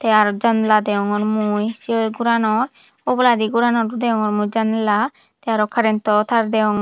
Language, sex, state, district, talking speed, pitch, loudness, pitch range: Chakma, female, Tripura, Dhalai, 160 wpm, 220 Hz, -18 LUFS, 210-230 Hz